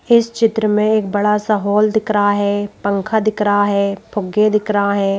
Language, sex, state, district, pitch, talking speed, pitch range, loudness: Hindi, female, Madhya Pradesh, Bhopal, 210 Hz, 210 wpm, 205-215 Hz, -16 LUFS